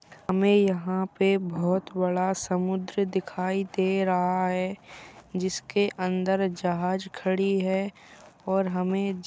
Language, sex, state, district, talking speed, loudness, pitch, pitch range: Hindi, female, Uttar Pradesh, Etah, 115 wpm, -27 LUFS, 185 Hz, 185-195 Hz